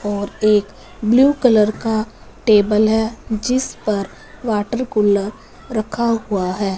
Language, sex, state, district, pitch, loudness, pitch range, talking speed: Hindi, female, Punjab, Fazilka, 215 Hz, -18 LUFS, 205-230 Hz, 125 wpm